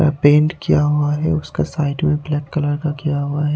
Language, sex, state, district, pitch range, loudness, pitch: Hindi, male, Haryana, Charkhi Dadri, 145-155 Hz, -18 LUFS, 150 Hz